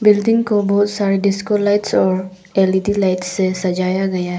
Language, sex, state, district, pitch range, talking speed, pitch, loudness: Hindi, female, Arunachal Pradesh, Papum Pare, 185-205 Hz, 180 wpm, 195 Hz, -17 LUFS